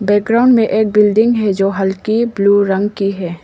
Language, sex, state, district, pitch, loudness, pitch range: Hindi, female, Arunachal Pradesh, Lower Dibang Valley, 205 Hz, -13 LUFS, 195-220 Hz